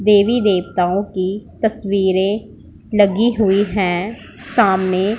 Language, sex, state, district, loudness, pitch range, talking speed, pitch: Hindi, female, Punjab, Pathankot, -17 LUFS, 190-215 Hz, 105 wpm, 200 Hz